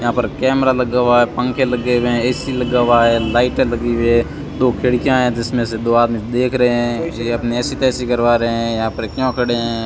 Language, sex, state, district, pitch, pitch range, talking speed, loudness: Hindi, male, Rajasthan, Bikaner, 120 Hz, 120-125 Hz, 245 wpm, -16 LUFS